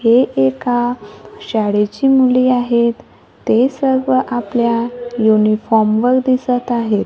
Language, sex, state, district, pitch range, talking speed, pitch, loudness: Marathi, female, Maharashtra, Gondia, 220-250 Hz, 100 wpm, 240 Hz, -15 LUFS